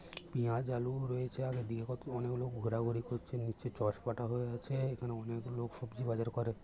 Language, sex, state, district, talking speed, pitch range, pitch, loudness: Bengali, male, West Bengal, Jhargram, 170 wpm, 115-125 Hz, 120 Hz, -39 LUFS